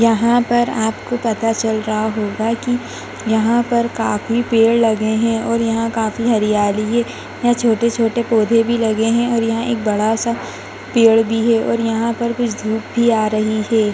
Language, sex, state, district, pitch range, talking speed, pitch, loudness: Hindi, female, Chhattisgarh, Bastar, 220-235 Hz, 170 wpm, 225 Hz, -17 LUFS